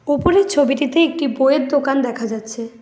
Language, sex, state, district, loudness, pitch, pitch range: Bengali, female, West Bengal, Alipurduar, -17 LUFS, 275 Hz, 240-290 Hz